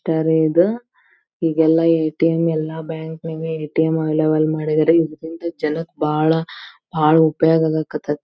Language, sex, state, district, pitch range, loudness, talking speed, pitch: Kannada, female, Karnataka, Belgaum, 155-165 Hz, -18 LUFS, 155 wpm, 160 Hz